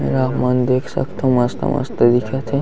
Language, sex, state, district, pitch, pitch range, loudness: Chhattisgarhi, male, Chhattisgarh, Sarguja, 125 Hz, 120-130 Hz, -18 LUFS